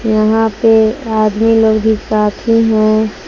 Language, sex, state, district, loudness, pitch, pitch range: Hindi, female, Jharkhand, Palamu, -12 LUFS, 220 Hz, 215-225 Hz